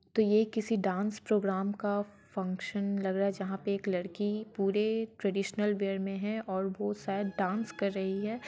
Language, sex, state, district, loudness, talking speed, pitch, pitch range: Hindi, female, Bihar, Sitamarhi, -32 LUFS, 185 wpm, 200 Hz, 195-210 Hz